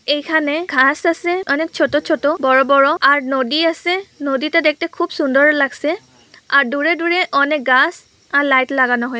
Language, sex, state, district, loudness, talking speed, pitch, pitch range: Bengali, female, West Bengal, Purulia, -15 LUFS, 165 wpm, 295 Hz, 275-330 Hz